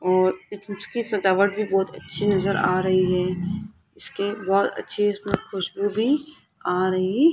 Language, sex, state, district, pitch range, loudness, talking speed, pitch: Hindi, female, Rajasthan, Jaipur, 185-205 Hz, -23 LUFS, 155 wpm, 195 Hz